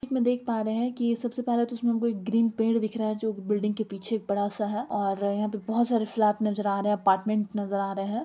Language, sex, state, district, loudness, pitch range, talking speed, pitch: Hindi, female, Bihar, Gopalganj, -27 LUFS, 205-235 Hz, 285 wpm, 215 Hz